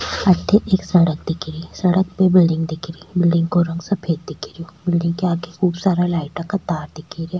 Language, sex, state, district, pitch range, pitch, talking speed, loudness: Rajasthani, female, Rajasthan, Churu, 165-185 Hz, 175 Hz, 210 wpm, -19 LUFS